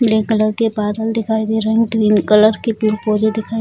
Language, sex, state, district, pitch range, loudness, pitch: Hindi, female, Bihar, Bhagalpur, 215-225 Hz, -16 LUFS, 220 Hz